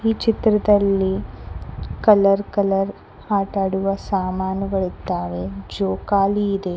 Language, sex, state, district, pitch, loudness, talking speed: Kannada, female, Karnataka, Koppal, 195 Hz, -20 LUFS, 70 wpm